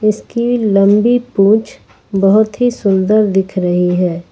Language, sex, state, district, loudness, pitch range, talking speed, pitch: Hindi, female, Jharkhand, Ranchi, -13 LUFS, 190-225 Hz, 110 wpm, 205 Hz